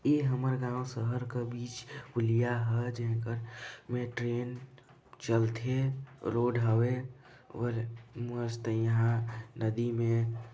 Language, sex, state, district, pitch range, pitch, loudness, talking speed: Hindi, male, Chhattisgarh, Balrampur, 115-125 Hz, 120 Hz, -33 LUFS, 115 wpm